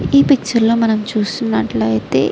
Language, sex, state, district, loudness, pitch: Telugu, female, Andhra Pradesh, Srikakulam, -15 LUFS, 210 Hz